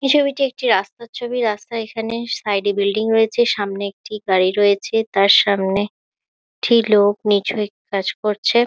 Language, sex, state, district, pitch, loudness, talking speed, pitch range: Bengali, female, West Bengal, Kolkata, 210 Hz, -18 LUFS, 160 wpm, 200-235 Hz